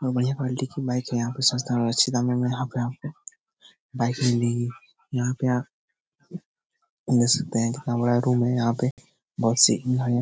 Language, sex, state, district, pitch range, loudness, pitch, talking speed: Hindi, male, Bihar, Jahanabad, 120-135 Hz, -24 LUFS, 125 Hz, 180 wpm